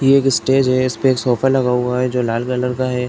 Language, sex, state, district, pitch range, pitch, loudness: Hindi, male, Uttar Pradesh, Varanasi, 125-135 Hz, 125 Hz, -16 LUFS